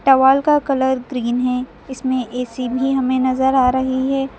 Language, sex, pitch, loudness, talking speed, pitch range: Hindi, female, 260 Hz, -18 LUFS, 180 wpm, 250-270 Hz